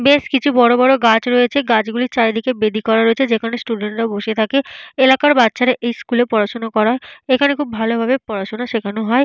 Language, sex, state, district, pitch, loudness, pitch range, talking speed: Bengali, female, Jharkhand, Jamtara, 235 Hz, -16 LUFS, 225-260 Hz, 190 wpm